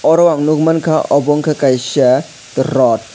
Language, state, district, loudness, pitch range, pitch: Kokborok, Tripura, West Tripura, -13 LUFS, 145-160 Hz, 155 Hz